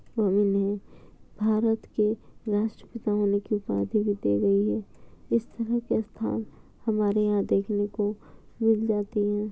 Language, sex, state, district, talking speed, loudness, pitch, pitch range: Hindi, male, Bihar, Kishanganj, 145 wpm, -27 LUFS, 205 Hz, 200-215 Hz